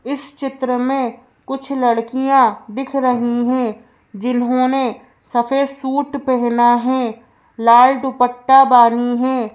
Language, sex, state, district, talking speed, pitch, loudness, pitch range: Hindi, female, Madhya Pradesh, Bhopal, 105 wpm, 250 Hz, -16 LUFS, 240-265 Hz